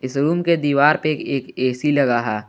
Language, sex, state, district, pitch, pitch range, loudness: Hindi, male, Jharkhand, Garhwa, 140 Hz, 130-150 Hz, -19 LUFS